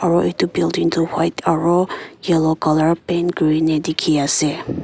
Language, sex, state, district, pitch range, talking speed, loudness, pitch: Nagamese, female, Nagaland, Kohima, 155-170 Hz, 135 wpm, -18 LUFS, 165 Hz